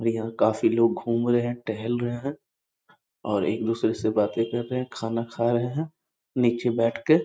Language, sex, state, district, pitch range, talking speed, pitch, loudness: Hindi, male, Bihar, East Champaran, 115-120 Hz, 205 wpm, 120 Hz, -25 LUFS